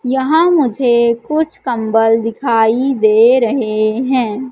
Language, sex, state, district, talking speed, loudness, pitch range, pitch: Hindi, female, Madhya Pradesh, Katni, 105 wpm, -13 LUFS, 225-265 Hz, 240 Hz